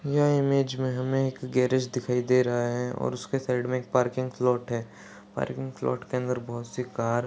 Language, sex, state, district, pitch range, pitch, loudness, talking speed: Hindi, male, Uttar Pradesh, Deoria, 120-130 Hz, 125 Hz, -27 LUFS, 215 wpm